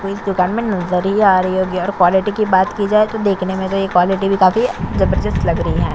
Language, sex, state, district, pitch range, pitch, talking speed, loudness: Hindi, female, Chhattisgarh, Korba, 185-205 Hz, 195 Hz, 270 wpm, -16 LUFS